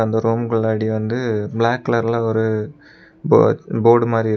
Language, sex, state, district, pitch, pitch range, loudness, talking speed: Tamil, male, Tamil Nadu, Kanyakumari, 115 Hz, 110-120 Hz, -18 LUFS, 135 wpm